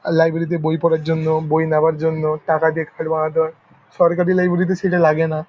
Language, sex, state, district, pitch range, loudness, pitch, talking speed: Bengali, male, West Bengal, Paschim Medinipur, 160-170 Hz, -18 LUFS, 160 Hz, 220 wpm